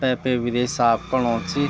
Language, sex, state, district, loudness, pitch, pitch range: Garhwali, male, Uttarakhand, Tehri Garhwal, -21 LUFS, 125 Hz, 120-130 Hz